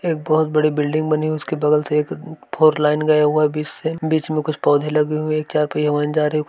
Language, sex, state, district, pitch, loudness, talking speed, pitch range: Hindi, male, Uttar Pradesh, Varanasi, 155 Hz, -19 LUFS, 275 wpm, 150-155 Hz